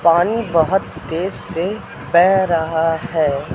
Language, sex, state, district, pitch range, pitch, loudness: Hindi, male, Madhya Pradesh, Katni, 160-185 Hz, 170 Hz, -17 LUFS